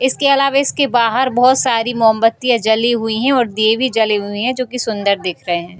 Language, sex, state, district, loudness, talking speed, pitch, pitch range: Hindi, female, Bihar, Gopalganj, -15 LUFS, 225 wpm, 230 Hz, 220-255 Hz